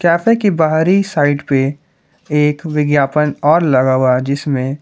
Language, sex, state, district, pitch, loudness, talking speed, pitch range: Hindi, male, Jharkhand, Ranchi, 150 Hz, -14 LUFS, 150 wpm, 140-165 Hz